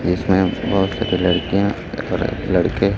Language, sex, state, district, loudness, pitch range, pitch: Hindi, male, Chhattisgarh, Raipur, -19 LUFS, 90-100 Hz, 95 Hz